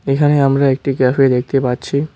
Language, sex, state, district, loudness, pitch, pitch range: Bengali, male, West Bengal, Cooch Behar, -15 LUFS, 135 Hz, 130-140 Hz